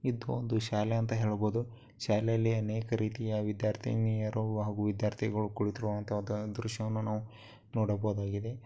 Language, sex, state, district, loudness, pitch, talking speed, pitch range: Kannada, male, Karnataka, Dakshina Kannada, -33 LUFS, 110 Hz, 105 wpm, 105-115 Hz